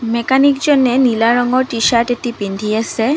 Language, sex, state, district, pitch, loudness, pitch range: Assamese, female, Assam, Kamrup Metropolitan, 240 Hz, -14 LUFS, 230-260 Hz